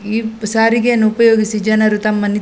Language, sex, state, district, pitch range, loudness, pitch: Kannada, female, Karnataka, Dakshina Kannada, 215-225 Hz, -14 LUFS, 215 Hz